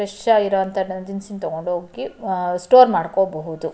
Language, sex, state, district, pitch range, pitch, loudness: Kannada, female, Karnataka, Shimoga, 175-205 Hz, 190 Hz, -19 LUFS